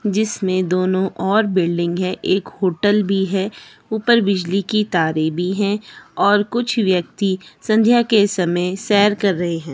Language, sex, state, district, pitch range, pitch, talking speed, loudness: Hindi, female, Himachal Pradesh, Shimla, 185-210 Hz, 195 Hz, 155 wpm, -18 LUFS